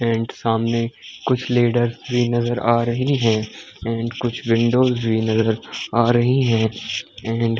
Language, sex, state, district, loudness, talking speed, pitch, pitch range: Hindi, male, Chhattisgarh, Bilaspur, -20 LUFS, 150 wpm, 115 Hz, 115-120 Hz